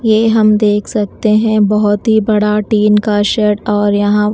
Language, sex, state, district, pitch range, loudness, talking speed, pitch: Hindi, female, Odisha, Nuapada, 210-215 Hz, -12 LUFS, 180 wpm, 210 Hz